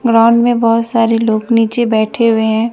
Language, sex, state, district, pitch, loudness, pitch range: Hindi, female, Bihar, West Champaran, 230 Hz, -12 LUFS, 220-235 Hz